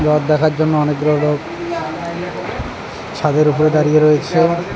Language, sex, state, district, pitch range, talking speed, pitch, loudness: Bengali, male, West Bengal, Cooch Behar, 150-155 Hz, 125 wpm, 155 Hz, -16 LUFS